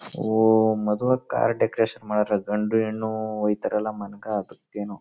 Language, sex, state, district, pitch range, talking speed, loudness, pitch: Kannada, male, Karnataka, Chamarajanagar, 105-110 Hz, 145 wpm, -24 LUFS, 110 Hz